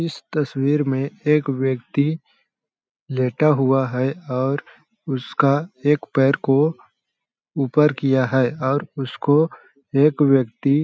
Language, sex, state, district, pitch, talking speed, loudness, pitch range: Hindi, male, Chhattisgarh, Balrampur, 140 Hz, 110 wpm, -20 LUFS, 135-150 Hz